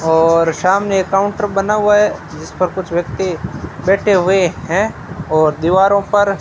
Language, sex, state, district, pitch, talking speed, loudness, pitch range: Hindi, male, Rajasthan, Bikaner, 190 Hz, 170 wpm, -15 LUFS, 165-200 Hz